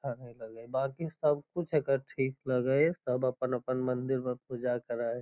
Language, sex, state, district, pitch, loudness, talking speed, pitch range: Magahi, male, Bihar, Lakhisarai, 130 Hz, -32 LUFS, 185 wpm, 125-135 Hz